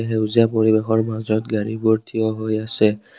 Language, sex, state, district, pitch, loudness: Assamese, male, Assam, Kamrup Metropolitan, 110 Hz, -20 LUFS